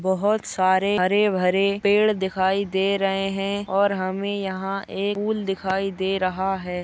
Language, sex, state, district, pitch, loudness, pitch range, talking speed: Hindi, female, Maharashtra, Solapur, 195 Hz, -23 LUFS, 190-200 Hz, 160 wpm